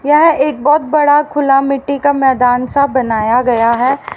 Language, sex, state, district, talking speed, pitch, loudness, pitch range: Hindi, female, Haryana, Rohtak, 160 wpm, 275 Hz, -12 LUFS, 250-290 Hz